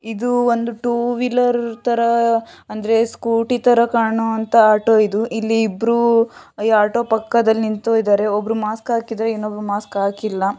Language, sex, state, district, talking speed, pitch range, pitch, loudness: Kannada, female, Karnataka, Shimoga, 130 wpm, 215-235 Hz, 225 Hz, -17 LUFS